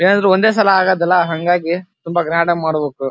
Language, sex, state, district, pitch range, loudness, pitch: Kannada, male, Karnataka, Dharwad, 165-190 Hz, -15 LUFS, 175 Hz